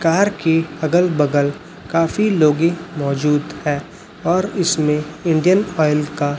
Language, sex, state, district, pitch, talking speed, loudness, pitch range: Hindi, male, Chhattisgarh, Raipur, 160 Hz, 120 wpm, -18 LUFS, 150-175 Hz